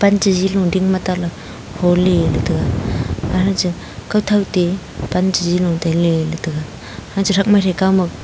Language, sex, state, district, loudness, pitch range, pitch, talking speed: Wancho, female, Arunachal Pradesh, Longding, -17 LUFS, 170-190 Hz, 180 Hz, 175 wpm